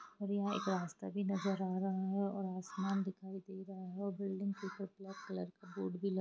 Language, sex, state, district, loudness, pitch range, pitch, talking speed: Hindi, female, Jharkhand, Jamtara, -41 LUFS, 190-195 Hz, 195 Hz, 230 wpm